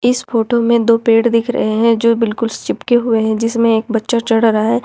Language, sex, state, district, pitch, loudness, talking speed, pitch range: Hindi, female, Jharkhand, Ranchi, 230 Hz, -14 LUFS, 235 wpm, 225-235 Hz